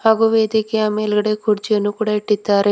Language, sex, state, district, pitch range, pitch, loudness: Kannada, female, Karnataka, Bidar, 210-220 Hz, 215 Hz, -18 LUFS